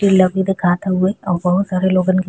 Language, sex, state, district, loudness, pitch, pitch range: Bhojpuri, female, Bihar, East Champaran, -16 LUFS, 185 Hz, 185-190 Hz